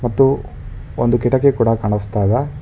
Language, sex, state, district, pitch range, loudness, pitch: Kannada, male, Karnataka, Bangalore, 105-135 Hz, -17 LUFS, 120 Hz